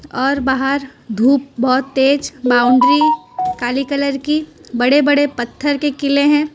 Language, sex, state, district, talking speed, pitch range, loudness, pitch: Hindi, female, Gujarat, Valsad, 135 wpm, 255-290 Hz, -15 LUFS, 275 Hz